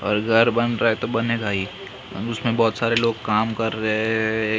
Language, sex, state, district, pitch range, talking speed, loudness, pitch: Hindi, male, Maharashtra, Mumbai Suburban, 110-115 Hz, 235 wpm, -21 LUFS, 115 Hz